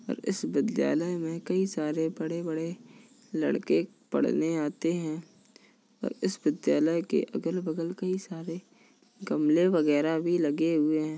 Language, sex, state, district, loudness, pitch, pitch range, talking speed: Hindi, female, Uttar Pradesh, Jalaun, -29 LUFS, 165 Hz, 160-185 Hz, 130 wpm